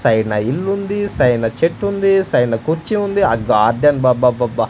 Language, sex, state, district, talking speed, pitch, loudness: Telugu, male, Andhra Pradesh, Manyam, 165 wpm, 125 Hz, -16 LUFS